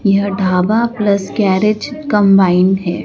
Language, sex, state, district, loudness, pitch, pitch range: Hindi, female, Madhya Pradesh, Dhar, -13 LUFS, 200 Hz, 190-210 Hz